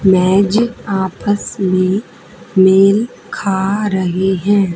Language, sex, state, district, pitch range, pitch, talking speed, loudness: Hindi, female, Haryana, Charkhi Dadri, 190-205 Hz, 195 Hz, 90 wpm, -14 LUFS